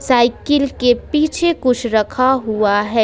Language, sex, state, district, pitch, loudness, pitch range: Hindi, female, Jharkhand, Ranchi, 250 Hz, -16 LUFS, 220-280 Hz